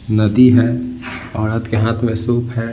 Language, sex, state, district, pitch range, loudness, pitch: Hindi, male, Bihar, Patna, 110-120 Hz, -16 LUFS, 120 Hz